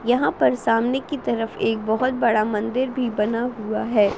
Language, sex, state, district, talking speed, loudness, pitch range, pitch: Hindi, female, Bihar, Begusarai, 185 wpm, -22 LUFS, 220-250 Hz, 230 Hz